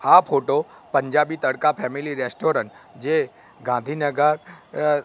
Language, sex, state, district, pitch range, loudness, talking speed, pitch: Gujarati, male, Gujarat, Gandhinagar, 140-150 Hz, -22 LUFS, 105 wpm, 150 Hz